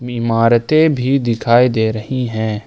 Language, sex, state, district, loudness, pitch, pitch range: Hindi, male, Jharkhand, Ranchi, -15 LUFS, 115 Hz, 110-125 Hz